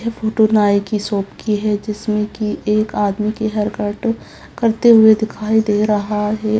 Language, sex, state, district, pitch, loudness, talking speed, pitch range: Hindi, female, Bihar, Madhepura, 215 Hz, -17 LUFS, 190 wpm, 210-220 Hz